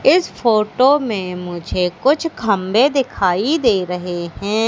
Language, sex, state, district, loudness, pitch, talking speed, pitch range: Hindi, female, Madhya Pradesh, Katni, -17 LUFS, 210 Hz, 130 wpm, 180-270 Hz